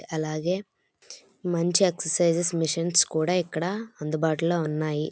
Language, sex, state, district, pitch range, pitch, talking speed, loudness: Telugu, female, Andhra Pradesh, Srikakulam, 160-180 Hz, 170 Hz, 95 wpm, -25 LUFS